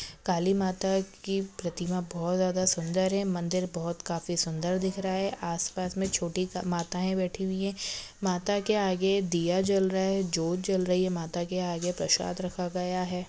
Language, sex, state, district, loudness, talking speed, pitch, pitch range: Hindi, female, Maharashtra, Pune, -29 LUFS, 175 wpm, 185 Hz, 175-190 Hz